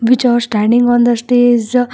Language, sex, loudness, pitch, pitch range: English, female, -12 LUFS, 240 Hz, 235-245 Hz